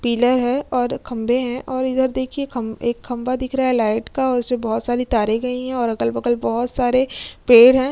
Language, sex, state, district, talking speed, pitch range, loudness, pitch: Hindi, female, Uttar Pradesh, Jyotiba Phule Nagar, 225 wpm, 235-260 Hz, -19 LUFS, 245 Hz